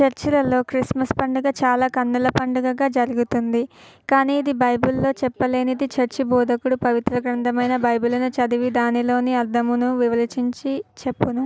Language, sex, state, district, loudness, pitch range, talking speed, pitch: Telugu, female, Telangana, Karimnagar, -20 LUFS, 245-260 Hz, 115 wpm, 250 Hz